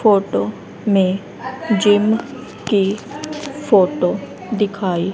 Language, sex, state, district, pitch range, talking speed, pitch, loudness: Hindi, female, Haryana, Rohtak, 195-225 Hz, 70 wpm, 205 Hz, -18 LUFS